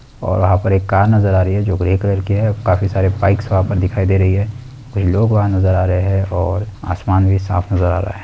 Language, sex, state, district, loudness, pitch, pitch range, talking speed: Hindi, male, Uttar Pradesh, Hamirpur, -16 LUFS, 95 Hz, 95-100 Hz, 275 wpm